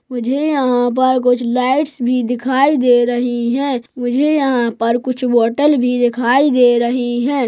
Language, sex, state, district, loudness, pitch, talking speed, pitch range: Hindi, male, Chhattisgarh, Rajnandgaon, -15 LUFS, 250 Hz, 160 wpm, 245-270 Hz